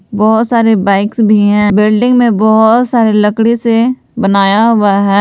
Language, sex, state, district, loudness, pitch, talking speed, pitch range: Hindi, female, Jharkhand, Palamu, -10 LUFS, 220 Hz, 160 wpm, 205-230 Hz